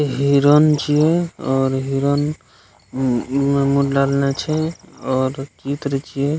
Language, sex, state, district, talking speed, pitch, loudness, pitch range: Maithili, male, Bihar, Begusarai, 120 wpm, 140 Hz, -18 LUFS, 135-145 Hz